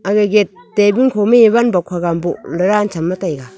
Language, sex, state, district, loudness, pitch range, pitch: Wancho, female, Arunachal Pradesh, Longding, -14 LUFS, 175-210 Hz, 200 Hz